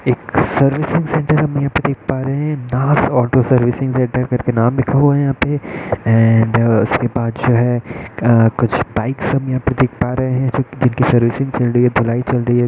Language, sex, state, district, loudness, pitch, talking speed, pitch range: Hindi, male, Bihar, Gaya, -15 LUFS, 125 Hz, 200 wpm, 120-135 Hz